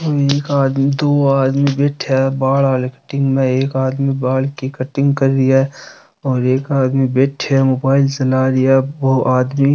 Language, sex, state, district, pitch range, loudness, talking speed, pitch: Rajasthani, male, Rajasthan, Nagaur, 130-140 Hz, -15 LUFS, 185 wpm, 135 Hz